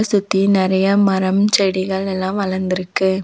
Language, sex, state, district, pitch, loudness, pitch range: Tamil, female, Tamil Nadu, Nilgiris, 190 Hz, -17 LUFS, 190-200 Hz